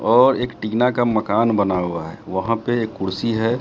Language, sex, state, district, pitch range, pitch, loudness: Hindi, male, Bihar, Katihar, 95-120 Hz, 110 Hz, -20 LUFS